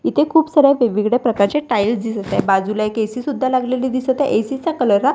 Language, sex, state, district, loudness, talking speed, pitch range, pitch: Marathi, female, Maharashtra, Washim, -17 LUFS, 220 wpm, 215-280 Hz, 250 Hz